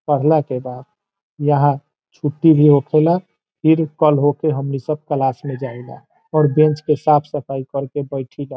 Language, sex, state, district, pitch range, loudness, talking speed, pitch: Bhojpuri, male, Bihar, Saran, 135-155 Hz, -17 LUFS, 160 wpm, 145 Hz